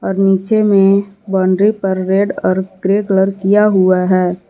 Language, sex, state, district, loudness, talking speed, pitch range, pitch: Hindi, female, Jharkhand, Garhwa, -13 LUFS, 160 wpm, 190-200 Hz, 195 Hz